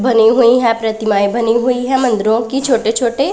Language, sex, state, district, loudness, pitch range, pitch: Hindi, female, Punjab, Pathankot, -13 LUFS, 225-250 Hz, 235 Hz